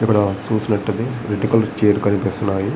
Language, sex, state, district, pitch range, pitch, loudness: Telugu, male, Andhra Pradesh, Visakhapatnam, 100-110 Hz, 105 Hz, -19 LUFS